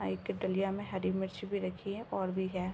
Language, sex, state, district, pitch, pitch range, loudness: Hindi, female, Uttar Pradesh, Ghazipur, 190 Hz, 185-195 Hz, -36 LUFS